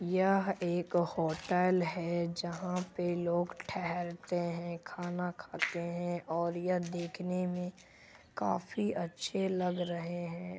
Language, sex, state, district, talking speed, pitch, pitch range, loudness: Hindi, male, Bihar, Madhepura, 120 wpm, 175 Hz, 170-180 Hz, -35 LUFS